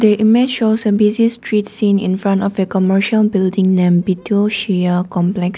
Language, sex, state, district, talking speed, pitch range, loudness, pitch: English, female, Nagaland, Dimapur, 185 wpm, 185-215 Hz, -15 LUFS, 200 Hz